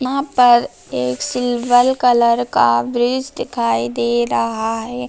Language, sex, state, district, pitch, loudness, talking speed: Hindi, female, Bihar, Samastipur, 235 Hz, -16 LUFS, 130 wpm